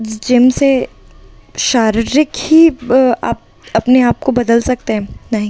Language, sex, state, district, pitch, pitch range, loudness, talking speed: Hindi, female, Delhi, New Delhi, 245 Hz, 225-265 Hz, -13 LUFS, 130 wpm